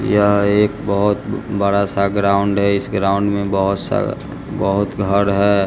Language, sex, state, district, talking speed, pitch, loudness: Hindi, male, Bihar, West Champaran, 160 wpm, 100 Hz, -17 LUFS